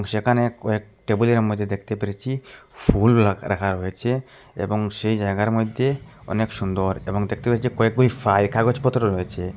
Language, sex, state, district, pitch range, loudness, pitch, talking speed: Bengali, male, Assam, Hailakandi, 100-120 Hz, -22 LUFS, 110 Hz, 155 wpm